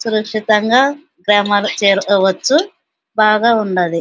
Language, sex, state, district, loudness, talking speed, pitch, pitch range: Telugu, female, Andhra Pradesh, Anantapur, -14 LUFS, 75 wpm, 215 Hz, 200-235 Hz